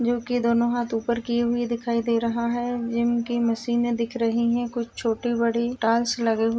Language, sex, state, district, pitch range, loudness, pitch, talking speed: Hindi, female, Uttar Pradesh, Budaun, 230-240 Hz, -24 LUFS, 235 Hz, 210 wpm